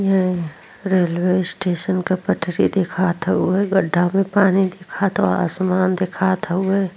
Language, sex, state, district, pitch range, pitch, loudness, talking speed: Hindi, female, Bihar, Vaishali, 180-195 Hz, 185 Hz, -19 LUFS, 145 wpm